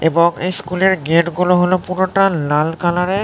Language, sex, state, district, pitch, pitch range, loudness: Bengali, male, West Bengal, North 24 Parganas, 180 Hz, 170-185 Hz, -16 LUFS